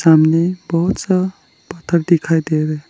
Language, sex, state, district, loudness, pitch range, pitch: Hindi, male, Arunachal Pradesh, Lower Dibang Valley, -16 LUFS, 160-175 Hz, 165 Hz